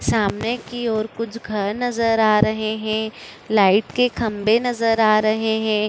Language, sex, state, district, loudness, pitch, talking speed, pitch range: Hindi, female, Uttar Pradesh, Budaun, -20 LUFS, 220 Hz, 165 wpm, 215-230 Hz